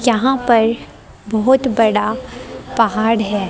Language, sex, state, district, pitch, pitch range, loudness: Hindi, female, Haryana, Rohtak, 230 Hz, 215-250 Hz, -16 LUFS